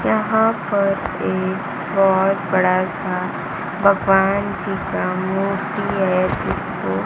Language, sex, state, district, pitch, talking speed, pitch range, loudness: Hindi, female, Bihar, Kaimur, 195 Hz, 100 wpm, 190-200 Hz, -19 LUFS